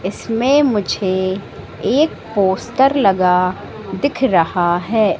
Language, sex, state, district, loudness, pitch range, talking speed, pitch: Hindi, female, Madhya Pradesh, Katni, -16 LUFS, 185-260 Hz, 90 wpm, 200 Hz